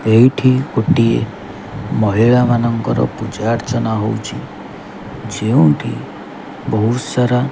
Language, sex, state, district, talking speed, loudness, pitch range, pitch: Odia, male, Odisha, Khordha, 90 wpm, -16 LUFS, 110-125 Hz, 115 Hz